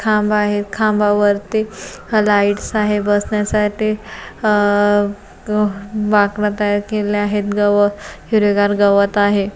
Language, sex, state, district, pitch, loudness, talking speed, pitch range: Marathi, female, Maharashtra, Pune, 205 Hz, -16 LUFS, 95 wpm, 205-210 Hz